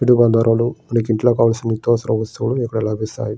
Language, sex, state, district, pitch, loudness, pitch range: Telugu, male, Andhra Pradesh, Srikakulam, 115 Hz, -18 LUFS, 110-120 Hz